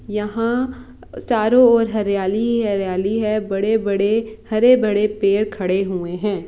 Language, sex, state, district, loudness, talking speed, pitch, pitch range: Hindi, female, Bihar, Saran, -18 LUFS, 130 wpm, 215 Hz, 200-225 Hz